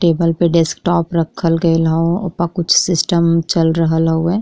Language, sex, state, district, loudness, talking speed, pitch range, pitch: Bhojpuri, female, Uttar Pradesh, Deoria, -15 LUFS, 165 wpm, 165-170 Hz, 170 Hz